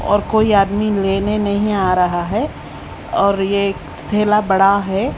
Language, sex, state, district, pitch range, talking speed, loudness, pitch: Hindi, female, Haryana, Rohtak, 195-210 Hz, 160 wpm, -16 LUFS, 200 Hz